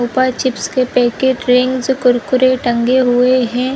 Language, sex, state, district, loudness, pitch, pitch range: Hindi, female, Chhattisgarh, Bastar, -14 LUFS, 255 Hz, 245-255 Hz